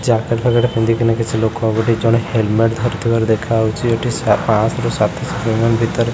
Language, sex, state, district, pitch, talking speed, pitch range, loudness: Odia, male, Odisha, Khordha, 115 Hz, 165 wpm, 110-115 Hz, -16 LUFS